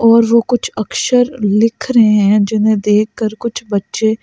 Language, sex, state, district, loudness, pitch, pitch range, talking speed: Hindi, female, Delhi, New Delhi, -13 LUFS, 220 Hz, 210-230 Hz, 155 wpm